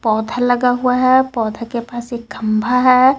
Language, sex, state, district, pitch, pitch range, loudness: Hindi, female, Jharkhand, Ranchi, 245 Hz, 230-250 Hz, -16 LUFS